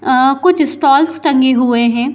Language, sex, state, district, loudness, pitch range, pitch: Hindi, female, Bihar, Saharsa, -12 LUFS, 255-305 Hz, 275 Hz